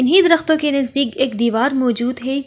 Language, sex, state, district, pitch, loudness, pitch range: Hindi, female, Delhi, New Delhi, 265 Hz, -16 LUFS, 245-285 Hz